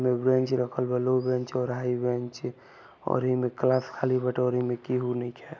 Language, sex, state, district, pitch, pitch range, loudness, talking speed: Bhojpuri, male, Bihar, Gopalganj, 125 Hz, 125-130 Hz, -27 LUFS, 150 wpm